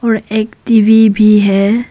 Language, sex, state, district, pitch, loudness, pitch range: Hindi, female, Arunachal Pradesh, Papum Pare, 220 Hz, -10 LUFS, 210-225 Hz